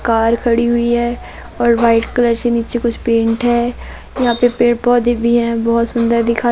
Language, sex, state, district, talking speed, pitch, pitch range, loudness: Hindi, female, Madhya Pradesh, Katni, 195 wpm, 235 Hz, 230-240 Hz, -15 LUFS